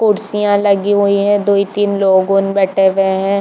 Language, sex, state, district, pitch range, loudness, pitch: Hindi, female, Chhattisgarh, Bilaspur, 195-205 Hz, -13 LUFS, 200 Hz